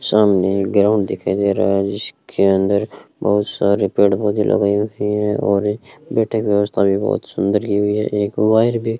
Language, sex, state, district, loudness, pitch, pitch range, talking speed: Hindi, male, Rajasthan, Bikaner, -17 LUFS, 105 Hz, 100-105 Hz, 195 wpm